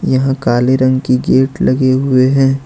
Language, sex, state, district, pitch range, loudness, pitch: Hindi, male, Jharkhand, Ranchi, 130-135 Hz, -12 LUFS, 130 Hz